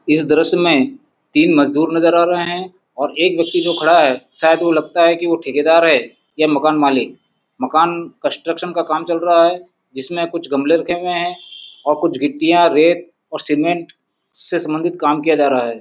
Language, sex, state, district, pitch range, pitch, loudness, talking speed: Hindi, male, Chhattisgarh, Rajnandgaon, 155-175 Hz, 170 Hz, -15 LUFS, 195 wpm